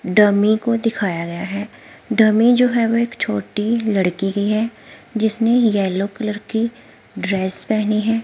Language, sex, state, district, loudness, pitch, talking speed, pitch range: Hindi, female, Himachal Pradesh, Shimla, -18 LUFS, 215 Hz, 155 wpm, 200-230 Hz